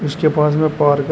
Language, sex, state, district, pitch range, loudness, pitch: Hindi, male, Uttar Pradesh, Shamli, 150-155 Hz, -16 LUFS, 150 Hz